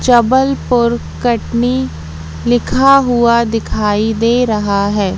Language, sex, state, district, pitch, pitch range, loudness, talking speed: Hindi, female, Madhya Pradesh, Katni, 235 Hz, 205-245 Hz, -13 LUFS, 95 wpm